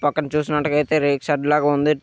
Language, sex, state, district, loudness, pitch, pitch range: Telugu, male, Andhra Pradesh, Krishna, -20 LUFS, 150 Hz, 145-150 Hz